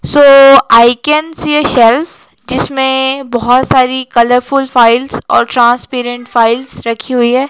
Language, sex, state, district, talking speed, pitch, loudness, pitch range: Hindi, female, Himachal Pradesh, Shimla, 135 wpm, 255 Hz, -9 LUFS, 240-275 Hz